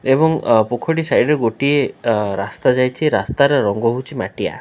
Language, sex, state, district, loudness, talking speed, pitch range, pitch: Odia, male, Odisha, Khordha, -17 LUFS, 170 wpm, 110-145 Hz, 130 Hz